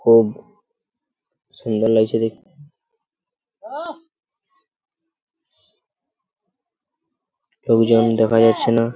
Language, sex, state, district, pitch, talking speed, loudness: Bengali, male, West Bengal, Purulia, 115 Hz, 60 wpm, -17 LUFS